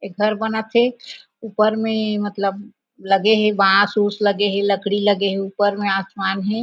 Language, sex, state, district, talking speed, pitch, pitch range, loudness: Chhattisgarhi, female, Chhattisgarh, Raigarh, 180 wpm, 205 Hz, 200-215 Hz, -19 LUFS